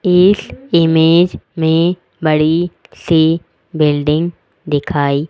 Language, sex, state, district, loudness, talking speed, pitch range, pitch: Hindi, female, Rajasthan, Jaipur, -14 LUFS, 80 wpm, 155-175 Hz, 160 Hz